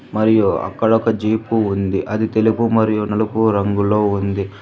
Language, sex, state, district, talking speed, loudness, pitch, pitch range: Telugu, female, Telangana, Hyderabad, 145 wpm, -17 LUFS, 110 Hz, 100-110 Hz